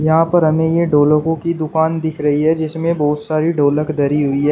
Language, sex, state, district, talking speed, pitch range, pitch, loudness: Hindi, male, Uttar Pradesh, Shamli, 225 wpm, 150-160 Hz, 155 Hz, -16 LUFS